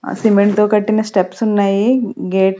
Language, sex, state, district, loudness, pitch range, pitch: Telugu, female, Andhra Pradesh, Sri Satya Sai, -15 LUFS, 195-220 Hz, 210 Hz